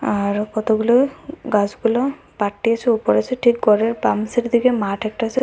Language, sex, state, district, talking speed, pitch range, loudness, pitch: Bengali, female, Assam, Hailakandi, 165 wpm, 210-245 Hz, -19 LUFS, 230 Hz